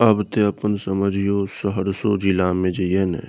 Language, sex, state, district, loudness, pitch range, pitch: Maithili, male, Bihar, Saharsa, -21 LUFS, 95-105 Hz, 100 Hz